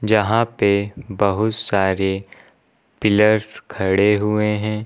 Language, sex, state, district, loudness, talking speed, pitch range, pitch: Hindi, male, Uttar Pradesh, Lucknow, -18 LUFS, 100 wpm, 100-110 Hz, 105 Hz